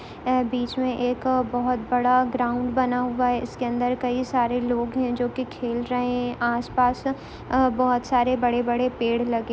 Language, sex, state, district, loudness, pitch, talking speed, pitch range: Hindi, female, Uttarakhand, Uttarkashi, -24 LUFS, 245 Hz, 170 wpm, 245-255 Hz